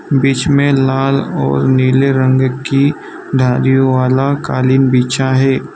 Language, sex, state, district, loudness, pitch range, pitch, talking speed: Hindi, male, Gujarat, Valsad, -13 LUFS, 130-135 Hz, 130 Hz, 125 wpm